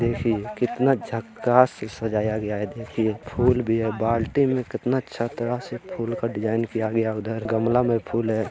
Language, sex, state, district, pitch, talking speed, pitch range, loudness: Hindi, male, Bihar, Bhagalpur, 115 Hz, 185 wpm, 110-120 Hz, -24 LUFS